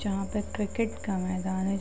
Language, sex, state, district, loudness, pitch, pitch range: Hindi, female, Uttar Pradesh, Gorakhpur, -31 LUFS, 195 Hz, 190-210 Hz